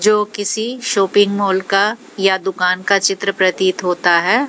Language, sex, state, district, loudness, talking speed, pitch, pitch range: Hindi, female, Haryana, Jhajjar, -16 LUFS, 160 wpm, 195 Hz, 190-205 Hz